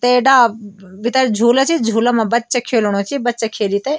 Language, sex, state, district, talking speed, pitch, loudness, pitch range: Garhwali, male, Uttarakhand, Tehri Garhwal, 210 wpm, 235 Hz, -15 LUFS, 220-250 Hz